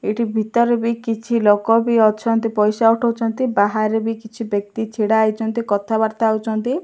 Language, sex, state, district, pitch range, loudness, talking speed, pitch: Odia, male, Odisha, Malkangiri, 215-230 Hz, -18 LUFS, 150 wpm, 225 Hz